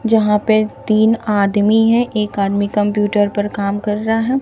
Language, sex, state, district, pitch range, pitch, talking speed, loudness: Hindi, female, Bihar, Katihar, 205-220 Hz, 210 Hz, 175 wpm, -16 LUFS